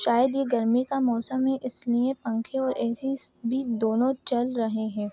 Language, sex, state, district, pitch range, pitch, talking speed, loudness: Hindi, female, Uttar Pradesh, Etah, 230-265 Hz, 245 Hz, 175 wpm, -26 LUFS